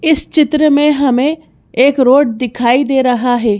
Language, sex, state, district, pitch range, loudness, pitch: Hindi, female, Madhya Pradesh, Bhopal, 245-295 Hz, -12 LUFS, 270 Hz